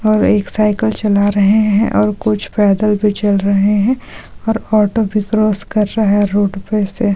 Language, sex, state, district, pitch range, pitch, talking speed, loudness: Hindi, female, Bihar, Supaul, 205-215 Hz, 210 Hz, 185 wpm, -14 LUFS